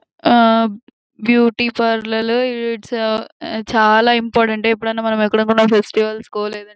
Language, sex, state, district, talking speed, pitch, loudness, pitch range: Telugu, female, Andhra Pradesh, Anantapur, 115 wpm, 225 Hz, -16 LUFS, 220-235 Hz